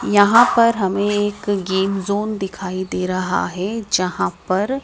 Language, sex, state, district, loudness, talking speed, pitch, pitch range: Hindi, female, Madhya Pradesh, Dhar, -18 LUFS, 150 wpm, 200 Hz, 190-205 Hz